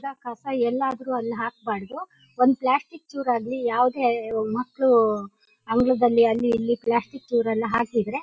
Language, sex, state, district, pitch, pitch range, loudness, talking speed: Kannada, female, Karnataka, Shimoga, 240 Hz, 230-255 Hz, -23 LUFS, 140 wpm